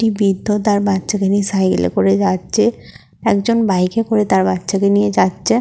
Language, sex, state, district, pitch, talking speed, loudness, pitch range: Bengali, female, West Bengal, Purulia, 200 Hz, 195 wpm, -16 LUFS, 190-215 Hz